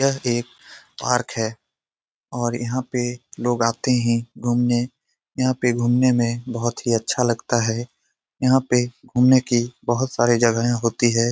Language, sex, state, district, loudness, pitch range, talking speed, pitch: Hindi, male, Bihar, Lakhisarai, -21 LUFS, 115-125 Hz, 160 wpm, 120 Hz